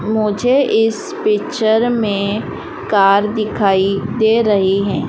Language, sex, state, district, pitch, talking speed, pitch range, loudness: Hindi, female, Madhya Pradesh, Dhar, 215 Hz, 105 wpm, 200-230 Hz, -15 LUFS